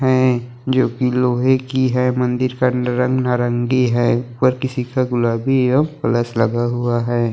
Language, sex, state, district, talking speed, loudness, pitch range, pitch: Hindi, female, Uttarakhand, Tehri Garhwal, 170 wpm, -18 LUFS, 120-130 Hz, 125 Hz